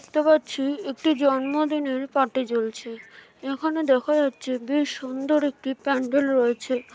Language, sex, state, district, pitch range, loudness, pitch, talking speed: Bengali, female, West Bengal, Dakshin Dinajpur, 255-290 Hz, -24 LUFS, 270 Hz, 130 wpm